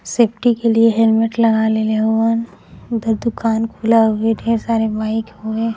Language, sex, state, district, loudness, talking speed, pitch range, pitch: Hindi, female, Uttar Pradesh, Ghazipur, -16 LUFS, 135 wpm, 220-230 Hz, 225 Hz